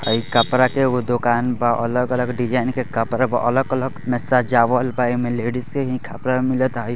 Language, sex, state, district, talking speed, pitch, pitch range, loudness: Hindi, male, Bihar, East Champaran, 170 wpm, 125 Hz, 120-130 Hz, -20 LUFS